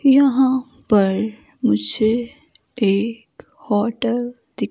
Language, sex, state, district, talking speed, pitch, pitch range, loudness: Hindi, female, Himachal Pradesh, Shimla, 75 wpm, 230 Hz, 210-250 Hz, -19 LUFS